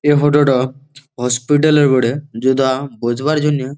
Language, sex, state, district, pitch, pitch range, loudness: Bengali, male, West Bengal, Malda, 135 Hz, 130-145 Hz, -15 LUFS